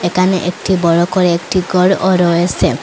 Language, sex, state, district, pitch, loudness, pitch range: Bengali, female, Assam, Hailakandi, 180 Hz, -13 LUFS, 175-185 Hz